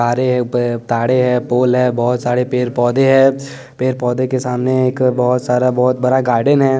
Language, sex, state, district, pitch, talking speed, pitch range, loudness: Hindi, male, Bihar, West Champaran, 125 Hz, 195 wpm, 125-130 Hz, -15 LUFS